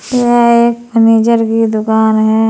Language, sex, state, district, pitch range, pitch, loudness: Hindi, female, Uttar Pradesh, Saharanpur, 220-235 Hz, 225 Hz, -10 LUFS